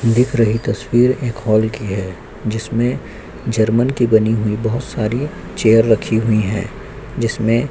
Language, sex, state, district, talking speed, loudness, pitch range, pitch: Hindi, male, Chhattisgarh, Korba, 155 wpm, -17 LUFS, 110-120 Hz, 115 Hz